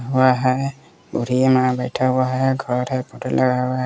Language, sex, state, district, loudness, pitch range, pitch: Hindi, male, Bihar, West Champaran, -19 LUFS, 125-130 Hz, 130 Hz